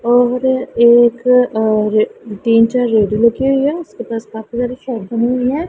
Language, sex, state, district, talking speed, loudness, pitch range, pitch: Hindi, female, Punjab, Pathankot, 170 wpm, -14 LUFS, 230-250 Hz, 240 Hz